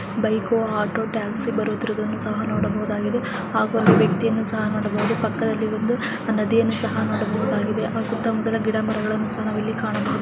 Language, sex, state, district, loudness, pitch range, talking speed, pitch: Kannada, female, Karnataka, Chamarajanagar, -22 LUFS, 215-225 Hz, 140 wpm, 220 Hz